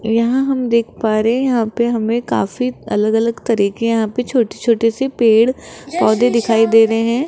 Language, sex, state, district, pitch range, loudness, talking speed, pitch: Hindi, female, Rajasthan, Jaipur, 225-245 Hz, -16 LUFS, 195 wpm, 230 Hz